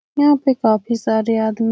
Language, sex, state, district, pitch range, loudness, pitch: Hindi, female, Bihar, Saran, 220-265 Hz, -17 LUFS, 225 Hz